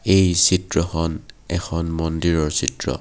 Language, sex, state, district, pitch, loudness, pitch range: Assamese, male, Assam, Kamrup Metropolitan, 85 Hz, -20 LUFS, 80-90 Hz